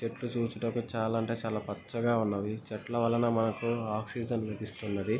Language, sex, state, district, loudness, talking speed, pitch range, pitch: Telugu, male, Andhra Pradesh, Guntur, -32 LUFS, 140 wpm, 105-115 Hz, 115 Hz